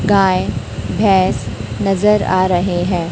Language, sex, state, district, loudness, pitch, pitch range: Hindi, female, Chhattisgarh, Raipur, -16 LUFS, 185 Hz, 170-195 Hz